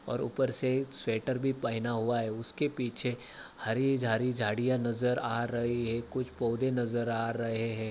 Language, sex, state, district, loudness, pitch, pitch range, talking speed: Hindi, male, Maharashtra, Aurangabad, -30 LUFS, 120 Hz, 115-130 Hz, 165 wpm